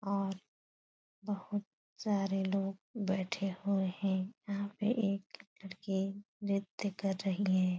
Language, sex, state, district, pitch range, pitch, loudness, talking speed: Hindi, female, Bihar, Supaul, 190-200 Hz, 195 Hz, -36 LUFS, 130 wpm